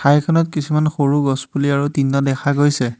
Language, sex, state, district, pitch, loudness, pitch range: Assamese, male, Assam, Hailakandi, 140 Hz, -17 LUFS, 140-150 Hz